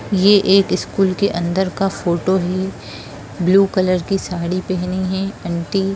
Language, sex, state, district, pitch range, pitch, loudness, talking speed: Hindi, female, Bihar, Jamui, 175-195 Hz, 185 Hz, -18 LUFS, 160 wpm